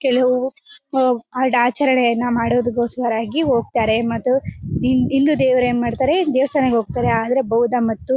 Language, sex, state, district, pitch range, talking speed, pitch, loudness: Kannada, female, Karnataka, Bellary, 235-265 Hz, 115 wpm, 250 Hz, -18 LUFS